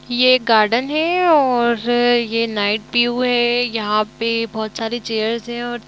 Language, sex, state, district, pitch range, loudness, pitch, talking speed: Hindi, female, Jharkhand, Jamtara, 225-245 Hz, -17 LUFS, 235 Hz, 175 wpm